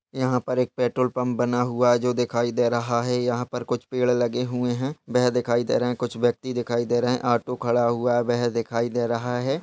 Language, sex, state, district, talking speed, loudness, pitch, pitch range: Hindi, male, Maharashtra, Pune, 250 wpm, -24 LUFS, 125 Hz, 120-125 Hz